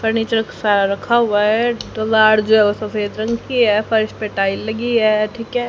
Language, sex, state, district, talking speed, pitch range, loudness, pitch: Hindi, female, Haryana, Charkhi Dadri, 190 wpm, 210-230 Hz, -17 LUFS, 220 Hz